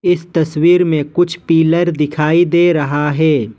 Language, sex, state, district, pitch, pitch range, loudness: Hindi, male, Jharkhand, Ranchi, 165 Hz, 150-175 Hz, -13 LUFS